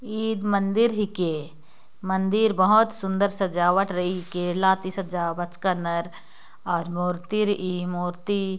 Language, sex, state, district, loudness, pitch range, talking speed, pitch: Sadri, female, Chhattisgarh, Jashpur, -24 LUFS, 175-205 Hz, 125 wpm, 190 Hz